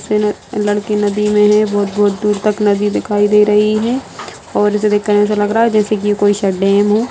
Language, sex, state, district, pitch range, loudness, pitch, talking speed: Hindi, female, Bihar, Saran, 205-210 Hz, -14 LUFS, 210 Hz, 205 wpm